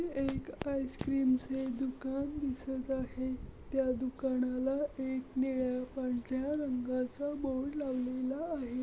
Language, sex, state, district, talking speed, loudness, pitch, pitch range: Marathi, female, Maharashtra, Aurangabad, 110 wpm, -35 LUFS, 265 Hz, 255-275 Hz